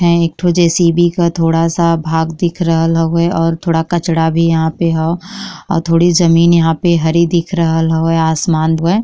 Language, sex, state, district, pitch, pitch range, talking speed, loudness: Bhojpuri, female, Uttar Pradesh, Gorakhpur, 165 Hz, 165-170 Hz, 200 wpm, -13 LUFS